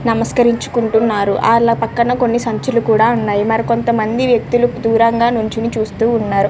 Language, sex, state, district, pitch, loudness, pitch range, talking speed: Telugu, female, Andhra Pradesh, Srikakulam, 230 Hz, -15 LUFS, 225-235 Hz, 150 wpm